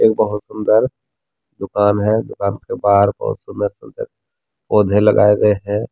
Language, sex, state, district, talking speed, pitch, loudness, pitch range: Hindi, male, Jharkhand, Deoghar, 150 wpm, 105 Hz, -16 LUFS, 100-105 Hz